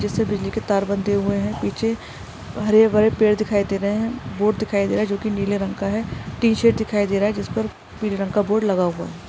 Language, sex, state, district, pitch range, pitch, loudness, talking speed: Hindi, female, Maharashtra, Dhule, 200-220 Hz, 210 Hz, -21 LUFS, 250 wpm